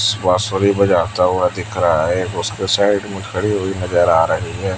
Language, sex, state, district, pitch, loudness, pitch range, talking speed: Hindi, male, Chhattisgarh, Raipur, 95 Hz, -17 LUFS, 90-100 Hz, 190 wpm